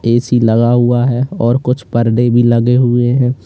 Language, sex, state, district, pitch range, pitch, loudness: Hindi, male, Uttar Pradesh, Lalitpur, 120-125 Hz, 120 Hz, -12 LUFS